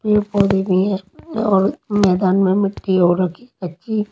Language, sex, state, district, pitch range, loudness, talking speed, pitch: Hindi, female, Maharashtra, Mumbai Suburban, 185-210 Hz, -17 LUFS, 175 wpm, 195 Hz